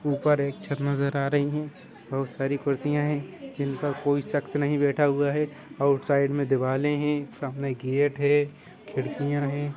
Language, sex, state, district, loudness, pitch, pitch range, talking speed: Hindi, male, Uttar Pradesh, Budaun, -26 LUFS, 145 Hz, 140-145 Hz, 180 wpm